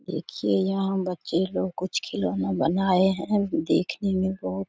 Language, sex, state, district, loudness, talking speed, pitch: Hindi, female, Bihar, Samastipur, -25 LUFS, 155 wpm, 185 Hz